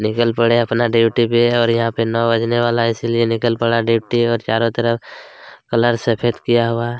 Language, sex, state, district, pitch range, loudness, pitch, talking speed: Hindi, male, Chhattisgarh, Kabirdham, 115-120 Hz, -17 LUFS, 115 Hz, 230 wpm